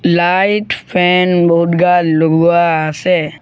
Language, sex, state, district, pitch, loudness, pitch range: Assamese, male, Assam, Sonitpur, 170 Hz, -12 LUFS, 165-180 Hz